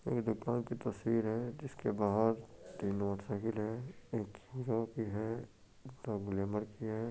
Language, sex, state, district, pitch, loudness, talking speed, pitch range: Hindi, male, Bihar, Purnia, 110 Hz, -38 LUFS, 150 wpm, 105-120 Hz